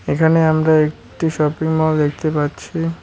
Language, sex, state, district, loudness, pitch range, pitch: Bengali, male, West Bengal, Cooch Behar, -17 LUFS, 150-160 Hz, 155 Hz